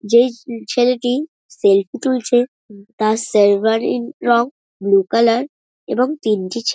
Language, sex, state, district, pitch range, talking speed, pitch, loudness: Bengali, female, West Bengal, North 24 Parganas, 220-255 Hz, 125 wpm, 235 Hz, -17 LUFS